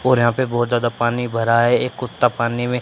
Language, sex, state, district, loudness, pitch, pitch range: Hindi, male, Haryana, Charkhi Dadri, -18 LUFS, 120 Hz, 120-125 Hz